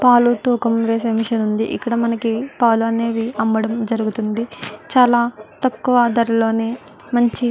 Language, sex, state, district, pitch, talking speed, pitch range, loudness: Telugu, female, Andhra Pradesh, Guntur, 230 Hz, 130 wpm, 225-240 Hz, -18 LUFS